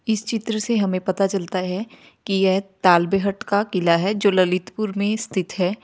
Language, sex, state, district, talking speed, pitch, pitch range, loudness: Hindi, female, Uttar Pradesh, Lalitpur, 185 wpm, 195 Hz, 185-210 Hz, -21 LUFS